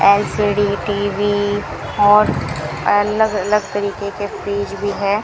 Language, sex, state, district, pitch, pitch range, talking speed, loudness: Hindi, female, Rajasthan, Bikaner, 205 Hz, 200-205 Hz, 115 wpm, -17 LUFS